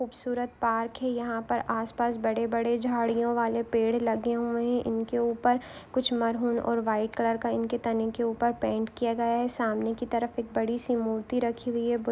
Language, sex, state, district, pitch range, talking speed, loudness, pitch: Hindi, female, Maharashtra, Aurangabad, 230-240 Hz, 200 wpm, -28 LUFS, 235 Hz